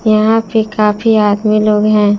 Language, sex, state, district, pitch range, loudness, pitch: Hindi, female, Jharkhand, Palamu, 210-220 Hz, -12 LUFS, 215 Hz